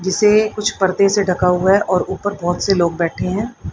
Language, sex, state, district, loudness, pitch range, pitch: Hindi, female, Haryana, Rohtak, -16 LUFS, 180-205 Hz, 190 Hz